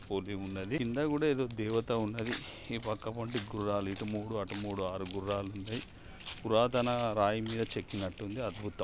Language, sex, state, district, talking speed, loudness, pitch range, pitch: Telugu, male, Andhra Pradesh, Srikakulam, 145 wpm, -34 LUFS, 100-115 Hz, 105 Hz